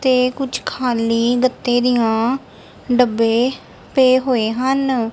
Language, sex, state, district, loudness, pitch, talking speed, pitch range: Punjabi, female, Punjab, Kapurthala, -17 LUFS, 250 Hz, 105 wpm, 230-260 Hz